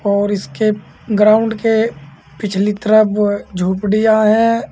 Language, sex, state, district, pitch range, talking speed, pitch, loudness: Hindi, male, Uttar Pradesh, Saharanpur, 200-215 Hz, 100 wpm, 210 Hz, -15 LUFS